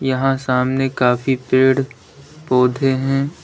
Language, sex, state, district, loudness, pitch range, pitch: Hindi, male, Uttar Pradesh, Lalitpur, -17 LUFS, 125-135 Hz, 130 Hz